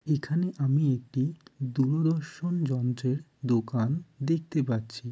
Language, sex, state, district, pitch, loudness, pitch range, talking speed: Bengali, male, West Bengal, Jalpaiguri, 140 Hz, -29 LUFS, 125-160 Hz, 95 wpm